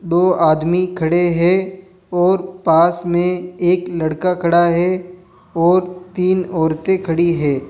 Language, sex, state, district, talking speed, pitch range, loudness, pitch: Hindi, male, Rajasthan, Jaipur, 125 wpm, 170-185 Hz, -16 LUFS, 180 Hz